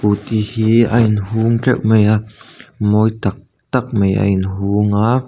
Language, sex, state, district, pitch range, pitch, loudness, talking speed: Mizo, male, Mizoram, Aizawl, 100-115 Hz, 110 Hz, -15 LUFS, 160 wpm